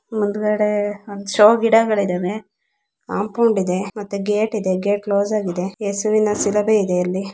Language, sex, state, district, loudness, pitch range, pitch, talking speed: Kannada, female, Karnataka, Belgaum, -19 LUFS, 195-215 Hz, 205 Hz, 140 wpm